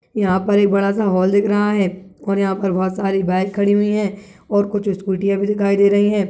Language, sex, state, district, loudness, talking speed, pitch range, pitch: Hindi, male, Chhattisgarh, Balrampur, -17 LUFS, 240 wpm, 190-205 Hz, 200 Hz